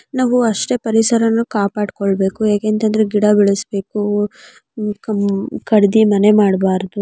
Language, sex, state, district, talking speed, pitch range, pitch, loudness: Kannada, male, Karnataka, Mysore, 100 wpm, 200-220 Hz, 210 Hz, -16 LUFS